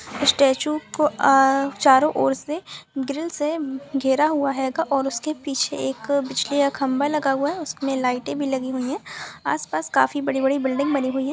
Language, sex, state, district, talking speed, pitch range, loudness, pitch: Hindi, female, Bihar, Sitamarhi, 180 wpm, 270-295 Hz, -22 LUFS, 275 Hz